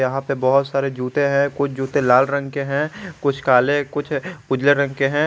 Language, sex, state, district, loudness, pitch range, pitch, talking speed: Hindi, male, Jharkhand, Garhwa, -19 LUFS, 135-145 Hz, 140 Hz, 215 wpm